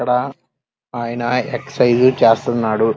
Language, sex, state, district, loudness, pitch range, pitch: Telugu, male, Andhra Pradesh, Krishna, -16 LUFS, 115-125 Hz, 120 Hz